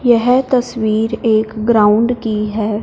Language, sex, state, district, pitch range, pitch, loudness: Hindi, female, Punjab, Fazilka, 215-240 Hz, 225 Hz, -14 LUFS